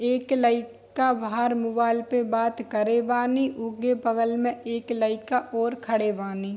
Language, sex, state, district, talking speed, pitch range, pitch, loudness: Hindi, female, Bihar, Darbhanga, 145 wpm, 230-245 Hz, 235 Hz, -25 LUFS